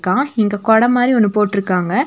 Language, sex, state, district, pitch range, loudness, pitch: Tamil, female, Tamil Nadu, Nilgiris, 200-245 Hz, -15 LUFS, 215 Hz